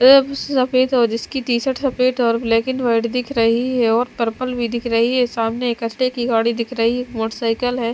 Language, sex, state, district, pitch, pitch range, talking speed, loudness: Hindi, female, Bihar, Katihar, 240 Hz, 230-255 Hz, 205 wpm, -18 LUFS